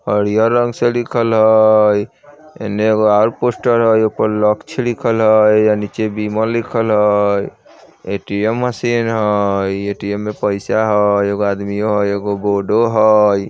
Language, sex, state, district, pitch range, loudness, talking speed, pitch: Bajjika, male, Bihar, Vaishali, 105-115 Hz, -15 LUFS, 150 wpm, 105 Hz